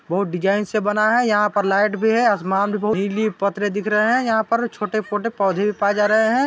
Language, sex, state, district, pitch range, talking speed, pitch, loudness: Chhattisgarhi, male, Chhattisgarh, Balrampur, 200-220 Hz, 250 wpm, 210 Hz, -19 LUFS